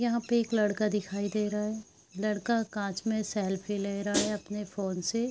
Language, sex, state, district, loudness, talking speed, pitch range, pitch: Hindi, female, Bihar, Araria, -31 LUFS, 205 wpm, 200-220 Hz, 210 Hz